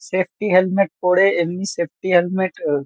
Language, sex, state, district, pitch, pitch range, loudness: Bengali, male, West Bengal, Kolkata, 185 Hz, 175-190 Hz, -18 LUFS